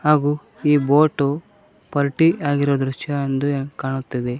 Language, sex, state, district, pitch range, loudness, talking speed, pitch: Kannada, male, Karnataka, Koppal, 135-150 Hz, -20 LUFS, 110 wpm, 145 Hz